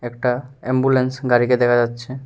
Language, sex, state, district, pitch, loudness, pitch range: Bengali, male, Tripura, West Tripura, 125 Hz, -18 LUFS, 120-130 Hz